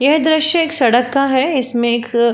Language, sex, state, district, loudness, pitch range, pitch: Hindi, female, Uttar Pradesh, Jalaun, -14 LUFS, 240-310 Hz, 260 Hz